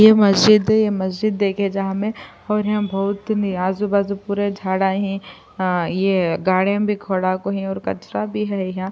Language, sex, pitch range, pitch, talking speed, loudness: Urdu, female, 190-210 Hz, 200 Hz, 195 wpm, -19 LUFS